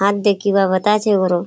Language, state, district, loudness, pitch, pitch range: Surjapuri, Bihar, Kishanganj, -16 LUFS, 200 Hz, 190-205 Hz